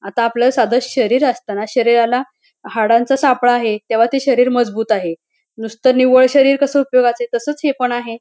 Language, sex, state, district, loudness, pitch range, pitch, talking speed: Marathi, female, Maharashtra, Pune, -15 LUFS, 230-265 Hz, 245 Hz, 170 wpm